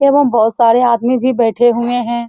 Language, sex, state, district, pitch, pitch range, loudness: Hindi, female, Bihar, Saran, 240 Hz, 235-250 Hz, -12 LUFS